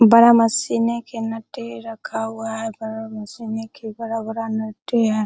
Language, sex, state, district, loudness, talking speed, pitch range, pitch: Hindi, female, Bihar, Araria, -21 LUFS, 150 wpm, 220-230 Hz, 225 Hz